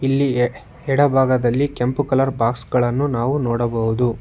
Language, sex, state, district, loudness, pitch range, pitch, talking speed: Kannada, male, Karnataka, Bangalore, -19 LUFS, 120-135 Hz, 130 Hz, 130 wpm